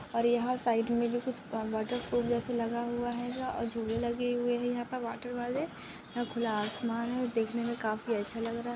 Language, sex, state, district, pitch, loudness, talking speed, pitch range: Hindi, female, Maharashtra, Dhule, 235 Hz, -33 LUFS, 210 wpm, 230-245 Hz